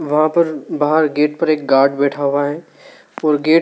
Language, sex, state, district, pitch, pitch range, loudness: Hindi, male, Madhya Pradesh, Dhar, 150 Hz, 145-155 Hz, -16 LUFS